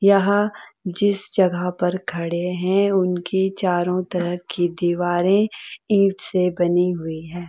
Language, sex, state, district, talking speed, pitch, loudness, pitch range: Hindi, female, Uttarakhand, Uttarkashi, 130 wpm, 180 Hz, -21 LUFS, 175-195 Hz